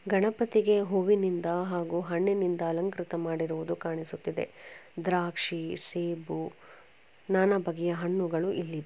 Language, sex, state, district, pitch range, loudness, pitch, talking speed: Kannada, female, Karnataka, Chamarajanagar, 170-195 Hz, -30 LUFS, 175 Hz, 90 wpm